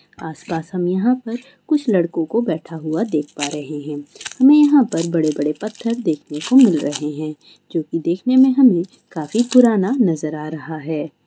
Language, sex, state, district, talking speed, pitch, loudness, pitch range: Hindi, female, Bihar, East Champaran, 180 wpm, 165 Hz, -18 LUFS, 155-235 Hz